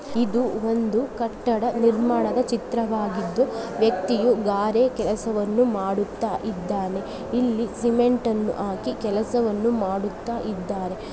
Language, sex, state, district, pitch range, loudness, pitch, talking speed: Kannada, female, Karnataka, Gulbarga, 210-235 Hz, -24 LUFS, 230 Hz, 90 wpm